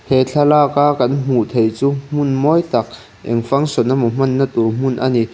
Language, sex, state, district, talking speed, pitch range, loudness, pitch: Mizo, male, Mizoram, Aizawl, 190 wpm, 120-140 Hz, -16 LUFS, 130 Hz